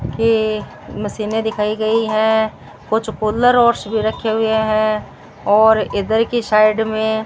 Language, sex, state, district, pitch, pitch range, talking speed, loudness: Hindi, female, Rajasthan, Bikaner, 220 Hz, 215-220 Hz, 130 wpm, -17 LUFS